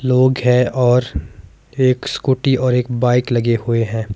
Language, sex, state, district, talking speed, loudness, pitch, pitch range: Hindi, male, Himachal Pradesh, Shimla, 160 wpm, -16 LUFS, 125 Hz, 115-130 Hz